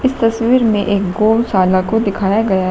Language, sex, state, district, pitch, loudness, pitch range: Hindi, female, Uttar Pradesh, Shamli, 210 Hz, -14 LUFS, 195-230 Hz